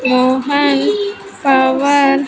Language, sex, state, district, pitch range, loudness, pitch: English, female, Andhra Pradesh, Sri Satya Sai, 205-280 Hz, -14 LUFS, 260 Hz